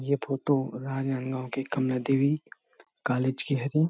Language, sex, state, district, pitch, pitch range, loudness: Chhattisgarhi, male, Chhattisgarh, Rajnandgaon, 135 Hz, 130-140 Hz, -29 LUFS